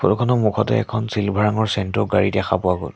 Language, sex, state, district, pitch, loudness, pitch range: Assamese, male, Assam, Sonitpur, 105 Hz, -20 LUFS, 100-110 Hz